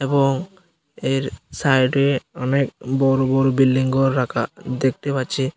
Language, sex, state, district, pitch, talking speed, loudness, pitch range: Bengali, male, Tripura, Unakoti, 135 Hz, 130 wpm, -20 LUFS, 130-140 Hz